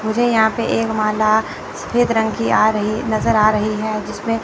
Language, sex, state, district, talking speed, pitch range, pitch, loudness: Hindi, male, Chandigarh, Chandigarh, 205 wpm, 215-225 Hz, 220 Hz, -17 LUFS